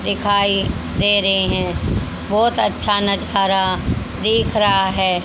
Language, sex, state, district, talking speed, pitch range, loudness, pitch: Hindi, female, Haryana, Charkhi Dadri, 115 wpm, 195-205 Hz, -17 LUFS, 200 Hz